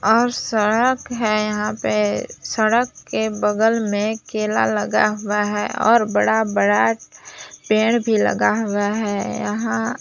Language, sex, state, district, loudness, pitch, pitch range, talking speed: Hindi, female, Jharkhand, Palamu, -19 LUFS, 215 Hz, 205-220 Hz, 140 wpm